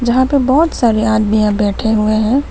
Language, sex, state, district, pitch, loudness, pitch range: Hindi, female, West Bengal, Alipurduar, 225 Hz, -13 LUFS, 215-260 Hz